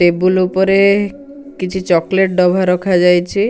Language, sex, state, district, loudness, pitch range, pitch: Odia, male, Odisha, Nuapada, -13 LUFS, 180-195 Hz, 190 Hz